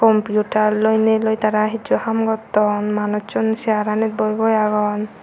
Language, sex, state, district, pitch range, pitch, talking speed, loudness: Chakma, female, Tripura, Unakoti, 210-220 Hz, 215 Hz, 135 wpm, -18 LUFS